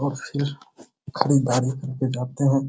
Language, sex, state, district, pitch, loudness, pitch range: Hindi, male, Bihar, Muzaffarpur, 135 Hz, -24 LUFS, 130-140 Hz